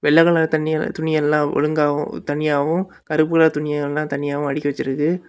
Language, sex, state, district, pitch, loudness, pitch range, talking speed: Tamil, male, Tamil Nadu, Kanyakumari, 150 Hz, -19 LUFS, 145-160 Hz, 160 wpm